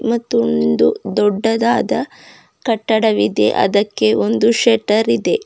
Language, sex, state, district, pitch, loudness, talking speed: Kannada, female, Karnataka, Bidar, 220 Hz, -15 LUFS, 75 wpm